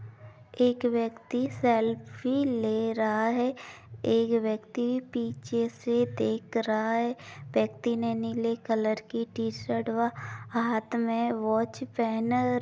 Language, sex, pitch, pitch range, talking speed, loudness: Maithili, female, 230 Hz, 220-240 Hz, 120 wpm, -29 LUFS